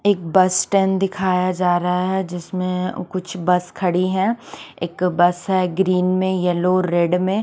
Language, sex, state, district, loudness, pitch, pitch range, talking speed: Hindi, female, Chandigarh, Chandigarh, -19 LUFS, 185 Hz, 180-190 Hz, 180 wpm